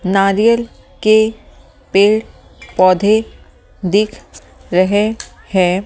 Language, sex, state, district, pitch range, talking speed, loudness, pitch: Hindi, female, Delhi, New Delhi, 190-220 Hz, 80 wpm, -14 LUFS, 205 Hz